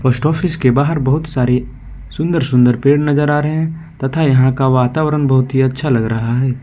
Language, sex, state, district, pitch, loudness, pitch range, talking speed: Hindi, male, Jharkhand, Ranchi, 135 Hz, -15 LUFS, 125-150 Hz, 210 wpm